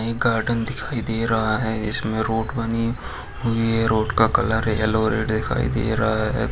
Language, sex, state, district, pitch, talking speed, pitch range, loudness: Hindi, male, Chhattisgarh, Sukma, 110 Hz, 195 wpm, 110-115 Hz, -22 LUFS